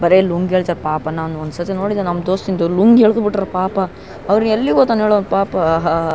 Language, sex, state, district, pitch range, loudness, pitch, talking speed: Kannada, male, Karnataka, Raichur, 170-205 Hz, -16 LUFS, 185 Hz, 165 wpm